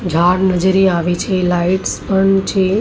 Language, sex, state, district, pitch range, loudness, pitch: Gujarati, female, Maharashtra, Mumbai Suburban, 175-190 Hz, -15 LUFS, 185 Hz